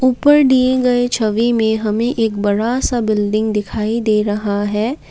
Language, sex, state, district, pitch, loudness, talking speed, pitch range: Hindi, female, Assam, Kamrup Metropolitan, 225 Hz, -16 LUFS, 165 wpm, 210-245 Hz